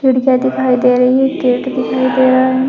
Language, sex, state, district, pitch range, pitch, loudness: Hindi, female, Uttar Pradesh, Shamli, 250-260 Hz, 255 Hz, -13 LUFS